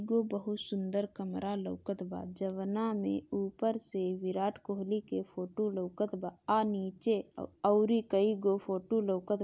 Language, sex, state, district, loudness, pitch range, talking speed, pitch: Bhojpuri, female, Bihar, Gopalganj, -34 LUFS, 185-210 Hz, 150 wpm, 200 Hz